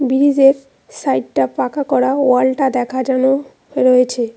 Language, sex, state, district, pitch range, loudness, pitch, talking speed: Bengali, female, West Bengal, Cooch Behar, 250-270 Hz, -15 LUFS, 260 Hz, 110 wpm